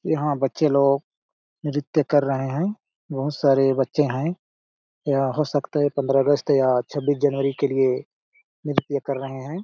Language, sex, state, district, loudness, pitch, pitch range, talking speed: Hindi, male, Chhattisgarh, Balrampur, -22 LUFS, 145 Hz, 135-150 Hz, 160 wpm